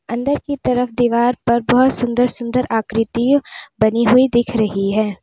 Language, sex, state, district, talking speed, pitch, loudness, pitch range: Hindi, female, Uttar Pradesh, Lalitpur, 160 wpm, 240 Hz, -16 LUFS, 225-250 Hz